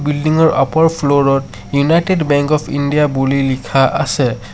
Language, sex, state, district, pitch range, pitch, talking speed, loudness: Assamese, male, Assam, Sonitpur, 135-155 Hz, 145 Hz, 160 wpm, -14 LUFS